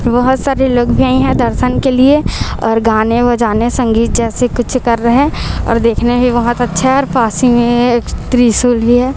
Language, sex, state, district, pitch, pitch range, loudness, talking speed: Hindi, female, Chhattisgarh, Raipur, 240 Hz, 235-255 Hz, -12 LUFS, 205 wpm